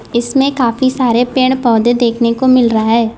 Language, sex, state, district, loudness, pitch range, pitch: Hindi, female, Gujarat, Valsad, -12 LUFS, 235-260 Hz, 240 Hz